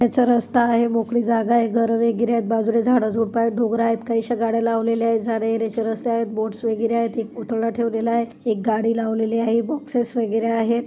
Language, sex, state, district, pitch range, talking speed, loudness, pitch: Marathi, female, Maharashtra, Chandrapur, 225-235 Hz, 180 wpm, -21 LUFS, 230 Hz